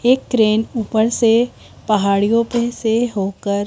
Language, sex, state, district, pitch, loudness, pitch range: Hindi, female, Madhya Pradesh, Bhopal, 225 Hz, -17 LUFS, 210-235 Hz